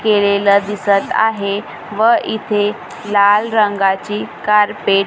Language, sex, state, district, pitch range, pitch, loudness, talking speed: Marathi, female, Maharashtra, Gondia, 200-215 Hz, 205 Hz, -15 LUFS, 105 wpm